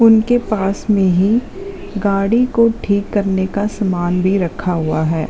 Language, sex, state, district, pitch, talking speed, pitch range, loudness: Hindi, female, Jharkhand, Jamtara, 200 Hz, 160 wpm, 190-225 Hz, -16 LUFS